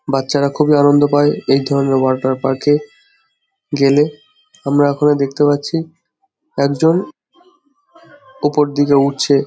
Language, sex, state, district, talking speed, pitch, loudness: Bengali, male, West Bengal, Jhargram, 120 wpm, 145 Hz, -15 LUFS